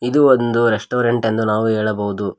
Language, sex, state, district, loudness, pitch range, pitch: Kannada, male, Karnataka, Koppal, -17 LUFS, 110-120 Hz, 110 Hz